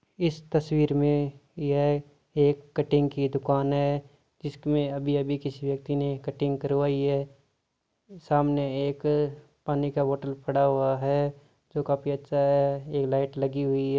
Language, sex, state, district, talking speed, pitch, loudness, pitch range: Marwari, male, Rajasthan, Nagaur, 150 wpm, 140 Hz, -27 LUFS, 140-145 Hz